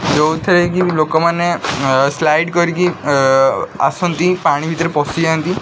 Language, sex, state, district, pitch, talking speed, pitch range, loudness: Odia, male, Odisha, Khordha, 160 Hz, 95 wpm, 145-175 Hz, -15 LUFS